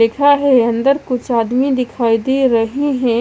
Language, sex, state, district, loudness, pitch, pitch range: Hindi, female, Chandigarh, Chandigarh, -15 LUFS, 250 Hz, 235-270 Hz